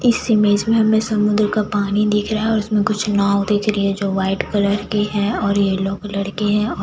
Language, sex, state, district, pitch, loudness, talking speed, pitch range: Hindi, female, Chhattisgarh, Jashpur, 210 Hz, -18 LUFS, 255 wpm, 200-215 Hz